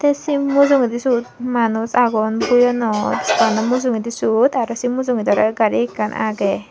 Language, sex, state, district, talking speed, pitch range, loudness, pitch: Chakma, female, Tripura, Dhalai, 160 wpm, 225-250 Hz, -17 LUFS, 240 Hz